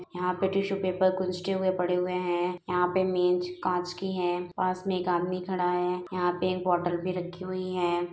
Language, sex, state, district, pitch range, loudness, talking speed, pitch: Hindi, female, Bihar, Madhepura, 180-185 Hz, -29 LUFS, 205 wpm, 180 Hz